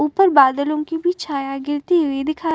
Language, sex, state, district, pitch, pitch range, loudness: Hindi, female, Uttar Pradesh, Muzaffarnagar, 300 Hz, 280-325 Hz, -18 LUFS